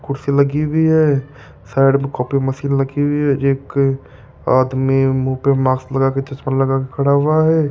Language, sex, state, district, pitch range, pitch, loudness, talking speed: Hindi, male, Rajasthan, Jaipur, 135-140 Hz, 135 Hz, -16 LUFS, 185 wpm